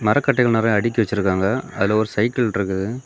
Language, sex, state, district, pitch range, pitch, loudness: Tamil, male, Tamil Nadu, Kanyakumari, 100-120 Hz, 110 Hz, -19 LUFS